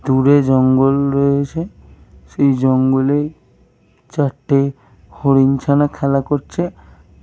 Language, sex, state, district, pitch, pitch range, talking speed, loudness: Bengali, male, Jharkhand, Jamtara, 135 Hz, 130-140 Hz, 85 wpm, -16 LUFS